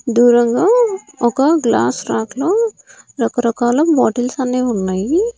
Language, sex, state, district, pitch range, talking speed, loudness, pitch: Telugu, female, Andhra Pradesh, Annamaya, 240-330 Hz, 100 wpm, -15 LUFS, 250 Hz